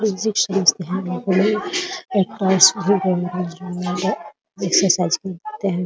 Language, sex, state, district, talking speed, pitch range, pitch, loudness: Hindi, female, Bihar, Muzaffarpur, 40 wpm, 180-210 Hz, 190 Hz, -19 LUFS